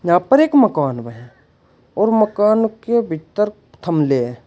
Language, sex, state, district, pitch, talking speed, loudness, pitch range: Hindi, male, Uttar Pradesh, Shamli, 175 Hz, 150 wpm, -16 LUFS, 135-220 Hz